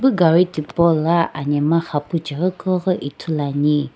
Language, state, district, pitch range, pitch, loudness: Sumi, Nagaland, Dimapur, 145-175 Hz, 160 Hz, -19 LUFS